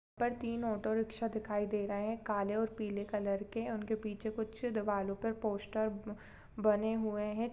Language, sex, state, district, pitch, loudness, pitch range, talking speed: Hindi, female, Bihar, Saharsa, 215 Hz, -37 LUFS, 210-225 Hz, 165 wpm